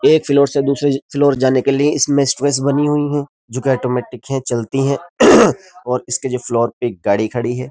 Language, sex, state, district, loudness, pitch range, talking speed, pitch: Hindi, male, Uttar Pradesh, Jyotiba Phule Nagar, -16 LUFS, 125-140 Hz, 210 wpm, 135 Hz